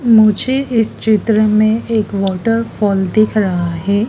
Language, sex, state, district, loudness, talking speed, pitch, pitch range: Hindi, female, Madhya Pradesh, Dhar, -14 LUFS, 130 wpm, 215 Hz, 200-225 Hz